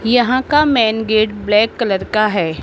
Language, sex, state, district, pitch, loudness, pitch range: Hindi, female, Rajasthan, Jaipur, 220 Hz, -15 LUFS, 210-245 Hz